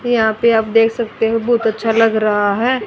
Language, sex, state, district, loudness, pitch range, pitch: Hindi, female, Haryana, Rohtak, -15 LUFS, 220-235 Hz, 225 Hz